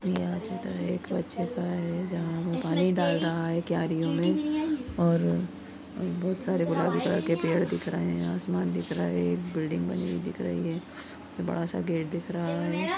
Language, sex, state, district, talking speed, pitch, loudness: Hindi, female, Goa, North and South Goa, 195 wpm, 165 Hz, -29 LUFS